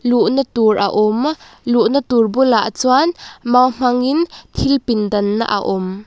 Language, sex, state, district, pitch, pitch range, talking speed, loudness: Mizo, female, Mizoram, Aizawl, 245 Hz, 215-270 Hz, 150 wpm, -16 LUFS